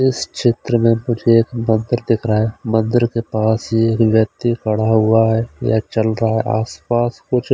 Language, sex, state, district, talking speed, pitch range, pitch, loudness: Hindi, male, Odisha, Khordha, 185 wpm, 110-120 Hz, 115 Hz, -17 LUFS